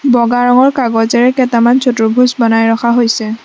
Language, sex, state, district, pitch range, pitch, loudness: Assamese, female, Assam, Sonitpur, 225-250 Hz, 240 Hz, -11 LUFS